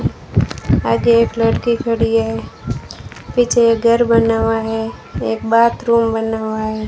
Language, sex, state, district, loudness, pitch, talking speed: Hindi, female, Rajasthan, Jaisalmer, -16 LUFS, 225 Hz, 140 wpm